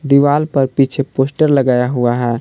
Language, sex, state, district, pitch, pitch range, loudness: Hindi, male, Jharkhand, Palamu, 135 Hz, 125-145 Hz, -14 LUFS